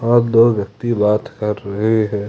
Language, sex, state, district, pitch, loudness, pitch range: Hindi, male, Jharkhand, Ranchi, 110 Hz, -17 LUFS, 105-115 Hz